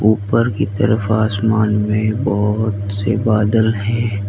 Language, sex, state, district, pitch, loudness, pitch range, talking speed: Hindi, male, Uttar Pradesh, Lalitpur, 110 Hz, -17 LUFS, 100-110 Hz, 125 wpm